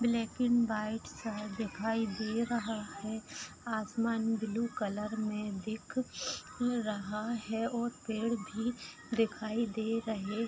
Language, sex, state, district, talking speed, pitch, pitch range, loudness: Hindi, female, Jharkhand, Sahebganj, 120 wpm, 225 Hz, 215-235 Hz, -35 LUFS